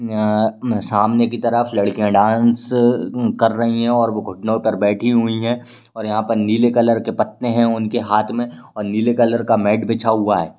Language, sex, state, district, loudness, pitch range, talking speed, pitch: Hindi, male, Maharashtra, Nagpur, -17 LUFS, 110-120 Hz, 205 wpm, 115 Hz